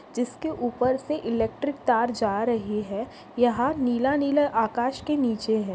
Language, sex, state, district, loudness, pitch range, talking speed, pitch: Hindi, female, Maharashtra, Pune, -25 LUFS, 225-280 Hz, 155 wpm, 245 Hz